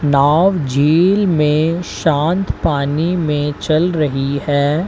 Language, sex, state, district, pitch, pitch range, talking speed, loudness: Hindi, male, Uttar Pradesh, Lalitpur, 155 Hz, 145-170 Hz, 110 wpm, -15 LUFS